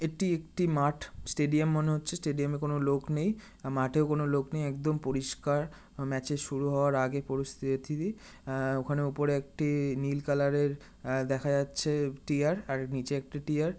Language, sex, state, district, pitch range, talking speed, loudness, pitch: Bengali, male, West Bengal, North 24 Parganas, 135-150 Hz, 170 wpm, -31 LUFS, 145 Hz